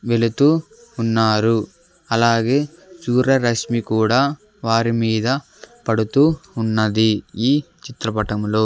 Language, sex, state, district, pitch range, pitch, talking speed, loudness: Telugu, male, Andhra Pradesh, Sri Satya Sai, 110-140 Hz, 115 Hz, 75 wpm, -19 LUFS